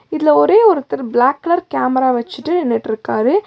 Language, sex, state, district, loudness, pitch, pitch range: Tamil, female, Tamil Nadu, Nilgiris, -15 LUFS, 280 Hz, 250-345 Hz